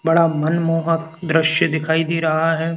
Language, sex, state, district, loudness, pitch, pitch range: Hindi, male, Madhya Pradesh, Bhopal, -18 LUFS, 165 Hz, 160-165 Hz